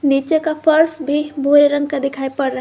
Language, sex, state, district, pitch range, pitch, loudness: Hindi, female, Jharkhand, Garhwa, 275-310 Hz, 290 Hz, -16 LUFS